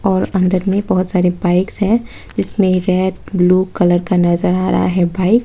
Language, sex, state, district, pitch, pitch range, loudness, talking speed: Hindi, female, Tripura, West Tripura, 185 Hz, 180-195 Hz, -15 LUFS, 200 wpm